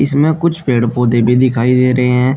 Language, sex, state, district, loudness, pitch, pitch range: Hindi, male, Uttar Pradesh, Shamli, -13 LUFS, 125 Hz, 120-135 Hz